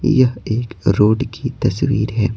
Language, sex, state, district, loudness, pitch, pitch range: Hindi, male, Bihar, Patna, -18 LUFS, 115 Hz, 110-130 Hz